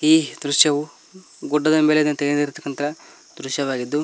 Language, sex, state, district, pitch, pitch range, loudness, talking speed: Kannada, male, Karnataka, Koppal, 150 Hz, 145-155 Hz, -20 LUFS, 90 wpm